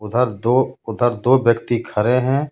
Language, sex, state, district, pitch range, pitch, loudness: Hindi, male, Jharkhand, Ranchi, 115-130 Hz, 120 Hz, -18 LUFS